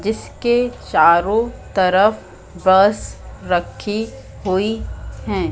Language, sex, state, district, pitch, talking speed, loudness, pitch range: Hindi, female, Madhya Pradesh, Katni, 205 Hz, 75 wpm, -17 LUFS, 185-220 Hz